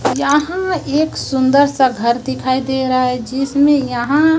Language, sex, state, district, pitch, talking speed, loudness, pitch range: Hindi, male, Chhattisgarh, Raipur, 265 Hz, 150 wpm, -15 LUFS, 260-290 Hz